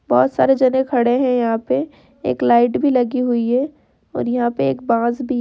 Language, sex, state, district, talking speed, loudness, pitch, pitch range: Hindi, female, Uttar Pradesh, Hamirpur, 235 wpm, -17 LUFS, 245 Hz, 235-260 Hz